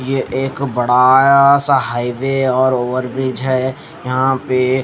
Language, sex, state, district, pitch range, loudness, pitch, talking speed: Hindi, male, Haryana, Jhajjar, 130-135 Hz, -15 LUFS, 130 Hz, 135 wpm